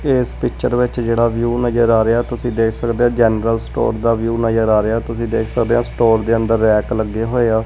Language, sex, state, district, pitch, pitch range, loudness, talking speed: Punjabi, male, Punjab, Kapurthala, 115 Hz, 115-120 Hz, -16 LUFS, 235 wpm